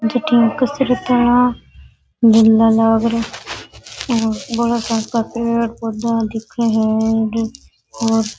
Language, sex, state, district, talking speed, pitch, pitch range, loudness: Rajasthani, female, Rajasthan, Nagaur, 100 wpm, 230 Hz, 225-235 Hz, -16 LUFS